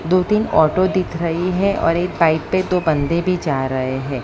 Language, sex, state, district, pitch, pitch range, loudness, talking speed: Hindi, female, Maharashtra, Mumbai Suburban, 170 Hz, 155-185 Hz, -18 LUFS, 225 wpm